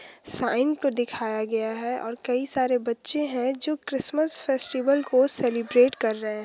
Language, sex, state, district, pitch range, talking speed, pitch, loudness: Hindi, female, Uttar Pradesh, Hamirpur, 235-275 Hz, 165 wpm, 255 Hz, -20 LUFS